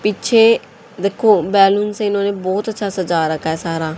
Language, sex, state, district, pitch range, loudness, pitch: Hindi, female, Haryana, Charkhi Dadri, 180-215 Hz, -16 LUFS, 200 Hz